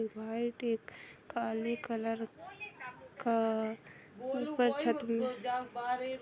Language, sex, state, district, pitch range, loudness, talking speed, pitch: Hindi, female, Bihar, Sitamarhi, 225-250 Hz, -36 LUFS, 75 wpm, 235 Hz